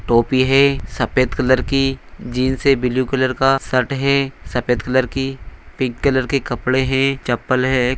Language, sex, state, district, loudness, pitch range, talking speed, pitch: Hindi, male, Bihar, Gaya, -18 LUFS, 125-135 Hz, 165 wpm, 130 Hz